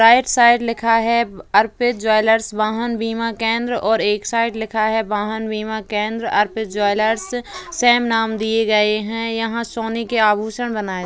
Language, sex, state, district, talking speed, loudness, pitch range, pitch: Hindi, female, Uttar Pradesh, Jalaun, 170 wpm, -18 LUFS, 215-230 Hz, 225 Hz